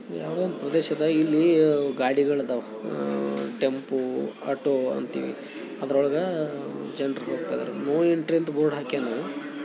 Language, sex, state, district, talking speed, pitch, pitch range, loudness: Kannada, male, Karnataka, Bijapur, 105 wpm, 145 Hz, 135-155 Hz, -26 LUFS